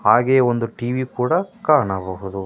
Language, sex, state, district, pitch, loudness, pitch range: Kannada, male, Karnataka, Koppal, 125 Hz, -19 LUFS, 100-130 Hz